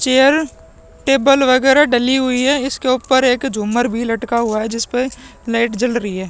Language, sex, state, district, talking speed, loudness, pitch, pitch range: Hindi, male, Bihar, Vaishali, 190 wpm, -15 LUFS, 250 Hz, 235-265 Hz